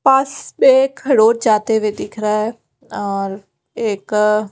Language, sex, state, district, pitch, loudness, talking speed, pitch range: Hindi, female, Bihar, Kaimur, 215 Hz, -16 LUFS, 135 wpm, 210-260 Hz